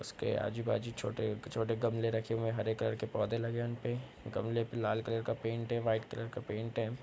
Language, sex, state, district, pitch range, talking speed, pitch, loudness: Hindi, male, Bihar, East Champaran, 110-115 Hz, 220 wpm, 115 Hz, -36 LUFS